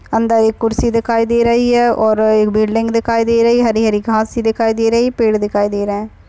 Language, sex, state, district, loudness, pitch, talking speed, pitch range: Hindi, female, Maharashtra, Chandrapur, -14 LUFS, 225 Hz, 240 wpm, 220-230 Hz